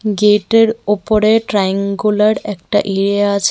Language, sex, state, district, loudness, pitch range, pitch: Bengali, female, Tripura, West Tripura, -14 LUFS, 200-215 Hz, 210 Hz